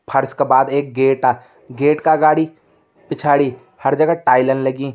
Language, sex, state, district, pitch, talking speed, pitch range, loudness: Kumaoni, male, Uttarakhand, Tehri Garhwal, 135 Hz, 155 wpm, 130-155 Hz, -16 LUFS